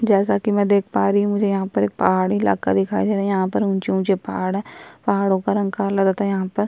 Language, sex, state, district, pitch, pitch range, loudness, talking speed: Hindi, female, Uttarakhand, Tehri Garhwal, 195 Hz, 185-200 Hz, -20 LUFS, 235 wpm